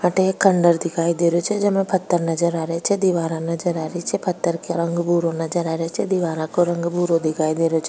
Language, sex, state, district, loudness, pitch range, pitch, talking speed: Rajasthani, female, Rajasthan, Nagaur, -20 LUFS, 165-175 Hz, 170 Hz, 260 wpm